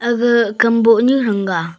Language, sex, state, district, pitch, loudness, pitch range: Wancho, male, Arunachal Pradesh, Longding, 230 Hz, -14 LUFS, 205-240 Hz